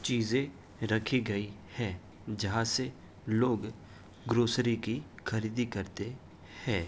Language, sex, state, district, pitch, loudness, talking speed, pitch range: Hindi, male, Uttar Pradesh, Hamirpur, 110 Hz, -33 LUFS, 105 wpm, 100-120 Hz